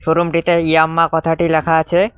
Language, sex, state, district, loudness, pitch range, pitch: Bengali, male, West Bengal, Cooch Behar, -15 LUFS, 160-170 Hz, 165 Hz